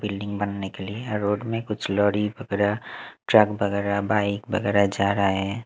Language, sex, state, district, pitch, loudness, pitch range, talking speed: Hindi, male, Bihar, Kaimur, 100 Hz, -24 LUFS, 100-105 Hz, 170 wpm